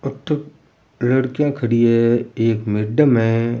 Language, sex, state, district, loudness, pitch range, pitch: Rajasthani, male, Rajasthan, Churu, -18 LUFS, 115-140 Hz, 120 Hz